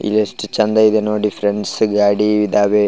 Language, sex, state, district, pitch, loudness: Kannada, male, Karnataka, Raichur, 105 Hz, -16 LUFS